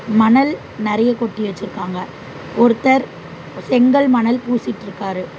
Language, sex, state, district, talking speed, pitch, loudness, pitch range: Tamil, female, Tamil Nadu, Chennai, 90 wpm, 220 Hz, -17 LUFS, 190-245 Hz